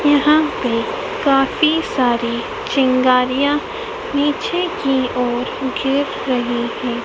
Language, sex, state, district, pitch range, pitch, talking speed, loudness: Hindi, female, Madhya Pradesh, Dhar, 250-310 Hz, 270 Hz, 95 wpm, -18 LUFS